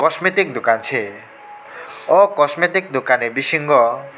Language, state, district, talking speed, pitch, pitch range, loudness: Kokborok, Tripura, West Tripura, 115 wpm, 160 Hz, 140-190 Hz, -16 LUFS